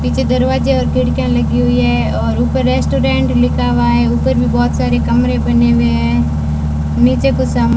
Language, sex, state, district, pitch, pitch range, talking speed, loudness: Hindi, female, Rajasthan, Bikaner, 80 Hz, 75-80 Hz, 185 wpm, -13 LUFS